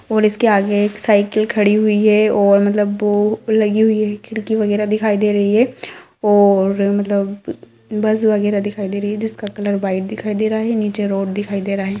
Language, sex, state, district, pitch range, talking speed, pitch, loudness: Hindi, female, Jharkhand, Sahebganj, 200-215 Hz, 205 wpm, 210 Hz, -16 LUFS